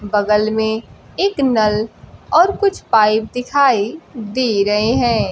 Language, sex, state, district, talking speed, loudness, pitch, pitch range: Hindi, female, Bihar, Kaimur, 125 wpm, -16 LUFS, 220 Hz, 210-260 Hz